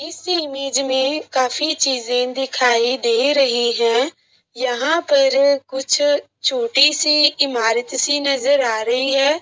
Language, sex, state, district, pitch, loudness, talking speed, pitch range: Hindi, female, Uttar Pradesh, Budaun, 275 Hz, -17 LUFS, 125 wpm, 250-290 Hz